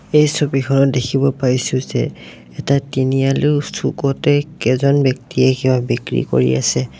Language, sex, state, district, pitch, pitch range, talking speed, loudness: Assamese, male, Assam, Sonitpur, 135 Hz, 125-140 Hz, 120 wpm, -17 LUFS